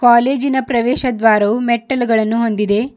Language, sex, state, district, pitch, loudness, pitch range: Kannada, female, Karnataka, Bidar, 235 Hz, -15 LUFS, 225-255 Hz